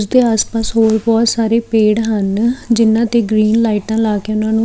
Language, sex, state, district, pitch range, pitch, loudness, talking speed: Punjabi, female, Chandigarh, Chandigarh, 215-230 Hz, 225 Hz, -14 LUFS, 205 wpm